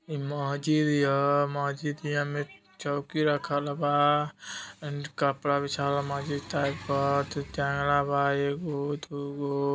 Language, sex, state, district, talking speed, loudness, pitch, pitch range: Hindi, male, Uttar Pradesh, Deoria, 115 wpm, -28 LUFS, 145 Hz, 140-145 Hz